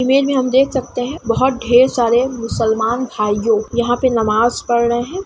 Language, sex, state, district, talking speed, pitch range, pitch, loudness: Hindi, female, Bihar, Lakhisarai, 195 wpm, 230-260 Hz, 240 Hz, -16 LUFS